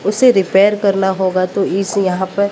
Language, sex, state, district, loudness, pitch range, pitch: Hindi, female, Maharashtra, Mumbai Suburban, -14 LUFS, 190-200 Hz, 195 Hz